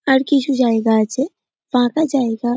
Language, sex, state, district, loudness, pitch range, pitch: Bengali, male, West Bengal, North 24 Parganas, -17 LUFS, 240-275 Hz, 260 Hz